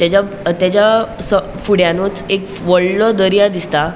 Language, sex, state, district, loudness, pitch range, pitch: Konkani, female, Goa, North and South Goa, -14 LUFS, 180-200 Hz, 195 Hz